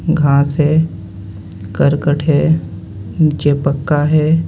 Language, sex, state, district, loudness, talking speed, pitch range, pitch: Hindi, male, Jharkhand, Ranchi, -14 LUFS, 95 wpm, 100-155 Hz, 145 Hz